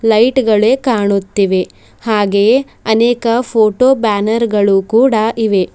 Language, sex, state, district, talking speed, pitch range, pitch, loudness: Kannada, female, Karnataka, Bidar, 105 wpm, 205-235 Hz, 220 Hz, -12 LUFS